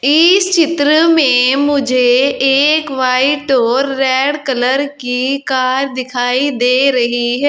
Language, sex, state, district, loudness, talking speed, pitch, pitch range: Hindi, female, Uttar Pradesh, Saharanpur, -12 LUFS, 120 wpm, 270 Hz, 255-285 Hz